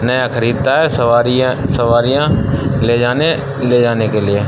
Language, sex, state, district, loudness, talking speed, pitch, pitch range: Hindi, male, Uttar Pradesh, Budaun, -14 LUFS, 145 wpm, 125 Hz, 120-135 Hz